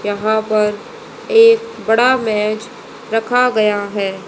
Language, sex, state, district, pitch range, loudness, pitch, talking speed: Hindi, female, Haryana, Rohtak, 210-250 Hz, -15 LUFS, 220 Hz, 110 wpm